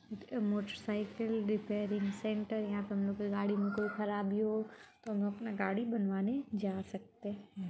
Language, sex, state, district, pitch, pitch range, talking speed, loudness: Hindi, female, Bihar, Muzaffarpur, 210 Hz, 205-215 Hz, 170 wpm, -37 LUFS